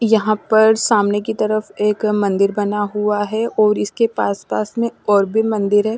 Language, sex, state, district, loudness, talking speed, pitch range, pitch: Hindi, female, Delhi, New Delhi, -17 LUFS, 180 wpm, 205-220 Hz, 210 Hz